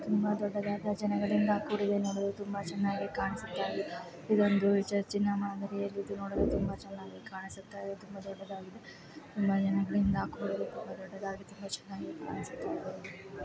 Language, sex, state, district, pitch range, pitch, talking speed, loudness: Kannada, female, Karnataka, Bellary, 195-205 Hz, 200 Hz, 90 wpm, -34 LUFS